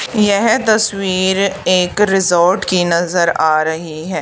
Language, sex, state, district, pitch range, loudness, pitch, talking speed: Hindi, female, Haryana, Charkhi Dadri, 170-200 Hz, -14 LUFS, 185 Hz, 130 wpm